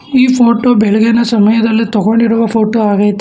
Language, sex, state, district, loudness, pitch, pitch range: Kannada, male, Karnataka, Bangalore, -10 LUFS, 225 Hz, 215-235 Hz